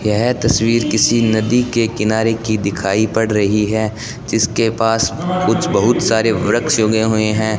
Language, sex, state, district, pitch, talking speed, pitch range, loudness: Hindi, male, Rajasthan, Bikaner, 110 Hz, 160 wpm, 110-115 Hz, -15 LUFS